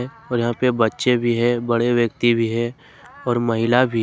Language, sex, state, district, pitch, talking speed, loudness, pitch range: Hindi, male, Jharkhand, Ranchi, 120 Hz, 210 wpm, -20 LUFS, 115-125 Hz